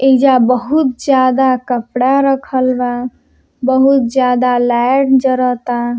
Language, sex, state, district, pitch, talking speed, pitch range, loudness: Bhojpuri, male, Uttar Pradesh, Deoria, 255 Hz, 100 wpm, 245-265 Hz, -13 LUFS